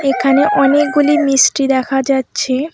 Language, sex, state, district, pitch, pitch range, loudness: Bengali, female, West Bengal, Alipurduar, 275 Hz, 265-285 Hz, -13 LUFS